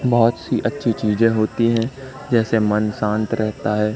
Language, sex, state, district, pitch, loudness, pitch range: Hindi, male, Madhya Pradesh, Katni, 115 Hz, -19 LUFS, 105-115 Hz